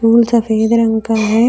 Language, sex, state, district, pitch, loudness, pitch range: Hindi, female, Jharkhand, Deoghar, 225 Hz, -13 LUFS, 220-230 Hz